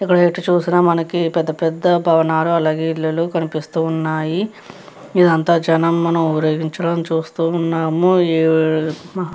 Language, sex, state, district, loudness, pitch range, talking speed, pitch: Telugu, female, Andhra Pradesh, Chittoor, -17 LUFS, 160-175 Hz, 110 wpm, 165 Hz